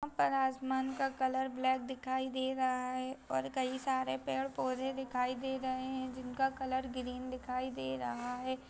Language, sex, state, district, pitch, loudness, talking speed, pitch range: Hindi, female, Bihar, Jahanabad, 260 Hz, -37 LUFS, 175 wpm, 255-265 Hz